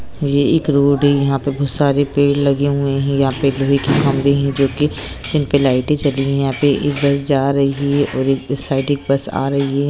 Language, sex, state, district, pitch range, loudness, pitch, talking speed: Hindi, female, Bihar, Saran, 135-145 Hz, -16 LUFS, 140 Hz, 255 wpm